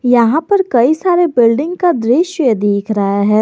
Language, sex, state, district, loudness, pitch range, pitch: Hindi, female, Jharkhand, Garhwa, -13 LUFS, 220-345 Hz, 245 Hz